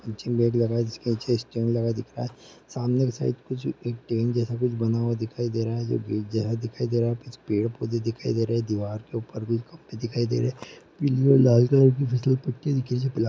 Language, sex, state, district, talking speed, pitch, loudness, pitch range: Hindi, male, Bihar, Gaya, 245 wpm, 120 Hz, -25 LUFS, 115-125 Hz